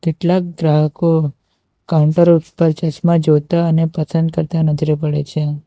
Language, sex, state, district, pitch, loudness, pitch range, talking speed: Gujarati, male, Gujarat, Valsad, 160 Hz, -16 LUFS, 150-170 Hz, 125 wpm